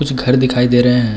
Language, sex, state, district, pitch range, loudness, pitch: Hindi, male, Uttarakhand, Tehri Garhwal, 125-130 Hz, -13 LUFS, 125 Hz